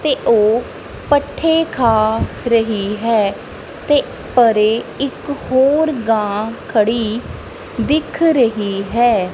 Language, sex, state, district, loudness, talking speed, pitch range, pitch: Punjabi, female, Punjab, Kapurthala, -16 LUFS, 95 wpm, 215-280 Hz, 230 Hz